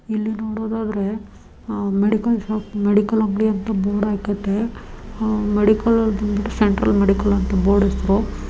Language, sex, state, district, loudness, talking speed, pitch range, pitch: Kannada, female, Karnataka, Dharwad, -20 LUFS, 120 wpm, 205-220 Hz, 210 Hz